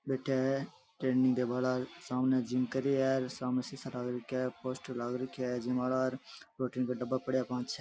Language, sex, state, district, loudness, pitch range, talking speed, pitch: Rajasthani, male, Rajasthan, Nagaur, -34 LUFS, 125-130 Hz, 225 wpm, 130 Hz